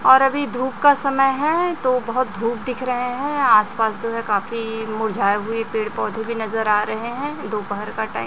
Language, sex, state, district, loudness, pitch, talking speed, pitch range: Hindi, male, Chhattisgarh, Raipur, -20 LUFS, 230 Hz, 210 wpm, 220-260 Hz